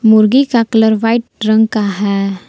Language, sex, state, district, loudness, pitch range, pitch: Hindi, female, Jharkhand, Palamu, -12 LUFS, 210-225 Hz, 220 Hz